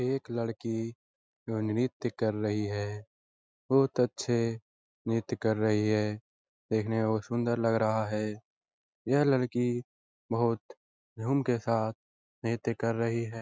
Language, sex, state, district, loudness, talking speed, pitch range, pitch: Hindi, male, Bihar, Lakhisarai, -31 LUFS, 130 wpm, 110-120 Hz, 115 Hz